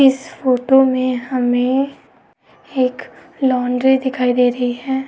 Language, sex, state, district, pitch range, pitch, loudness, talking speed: Hindi, female, Uttar Pradesh, Etah, 250-265 Hz, 255 Hz, -17 LUFS, 120 wpm